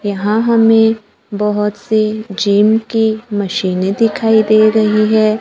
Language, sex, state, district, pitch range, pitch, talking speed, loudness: Hindi, female, Maharashtra, Gondia, 205-220 Hz, 215 Hz, 120 wpm, -13 LUFS